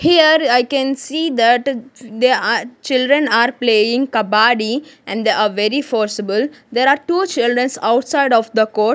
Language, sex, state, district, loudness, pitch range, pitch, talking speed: English, female, Maharashtra, Gondia, -15 LUFS, 225-275 Hz, 245 Hz, 160 wpm